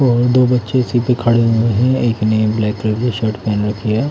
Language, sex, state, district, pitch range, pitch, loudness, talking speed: Hindi, male, Odisha, Khordha, 110-125 Hz, 115 Hz, -15 LUFS, 250 wpm